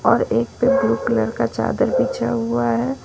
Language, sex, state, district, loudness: Hindi, female, Jharkhand, Ranchi, -19 LUFS